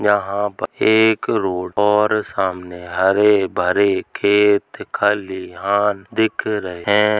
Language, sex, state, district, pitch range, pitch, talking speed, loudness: Hindi, male, Uttar Pradesh, Hamirpur, 95-105 Hz, 105 Hz, 110 wpm, -18 LUFS